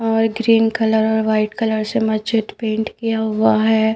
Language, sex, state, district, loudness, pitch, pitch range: Hindi, female, Madhya Pradesh, Bhopal, -18 LUFS, 220 Hz, 220-225 Hz